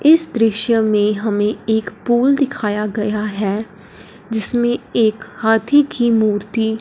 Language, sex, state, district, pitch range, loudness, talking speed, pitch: Hindi, female, Punjab, Fazilka, 210-240 Hz, -16 LUFS, 125 wpm, 220 Hz